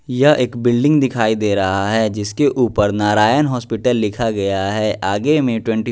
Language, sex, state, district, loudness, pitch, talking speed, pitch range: Hindi, male, Bihar, West Champaran, -16 LUFS, 110 Hz, 180 wpm, 105-125 Hz